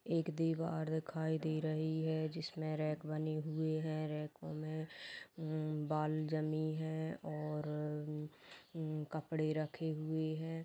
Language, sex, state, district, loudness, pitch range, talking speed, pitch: Hindi, female, Chhattisgarh, Kabirdham, -40 LUFS, 155-160 Hz, 130 wpm, 155 Hz